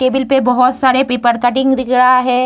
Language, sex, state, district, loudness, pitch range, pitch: Hindi, female, Uttar Pradesh, Deoria, -12 LUFS, 250-260 Hz, 255 Hz